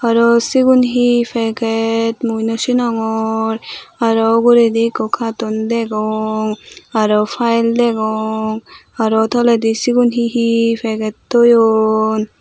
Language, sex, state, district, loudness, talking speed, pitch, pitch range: Chakma, female, Tripura, Unakoti, -15 LUFS, 100 wpm, 225 Hz, 220-235 Hz